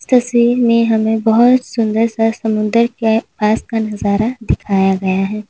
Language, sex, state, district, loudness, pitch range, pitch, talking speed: Hindi, female, Uttar Pradesh, Lalitpur, -15 LUFS, 215-235 Hz, 225 Hz, 140 wpm